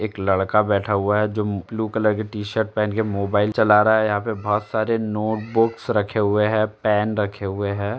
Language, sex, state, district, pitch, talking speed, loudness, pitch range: Hindi, male, Uttar Pradesh, Jalaun, 105 Hz, 210 wpm, -21 LUFS, 105-110 Hz